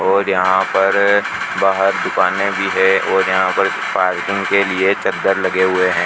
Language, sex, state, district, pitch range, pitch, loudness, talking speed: Hindi, male, Rajasthan, Bikaner, 95-100 Hz, 95 Hz, -15 LUFS, 170 wpm